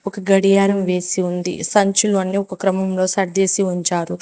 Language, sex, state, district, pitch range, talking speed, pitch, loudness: Telugu, female, Telangana, Mahabubabad, 180-195 Hz, 140 wpm, 190 Hz, -17 LUFS